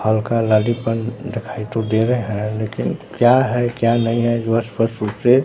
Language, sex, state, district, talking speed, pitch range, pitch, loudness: Hindi, male, Bihar, Katihar, 200 wpm, 110-120 Hz, 115 Hz, -19 LUFS